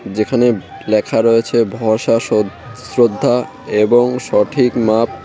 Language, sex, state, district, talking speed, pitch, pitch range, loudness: Bengali, male, West Bengal, Cooch Behar, 105 wpm, 115 Hz, 105-120 Hz, -15 LUFS